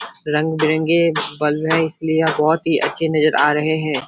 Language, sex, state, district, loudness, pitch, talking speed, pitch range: Hindi, male, Bihar, Supaul, -17 LUFS, 155 Hz, 175 wpm, 150-160 Hz